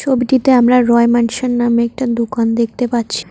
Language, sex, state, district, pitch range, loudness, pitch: Bengali, female, West Bengal, Cooch Behar, 235-250 Hz, -14 LUFS, 240 Hz